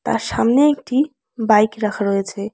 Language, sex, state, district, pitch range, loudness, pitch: Bengali, female, West Bengal, Alipurduar, 210-265 Hz, -18 LUFS, 220 Hz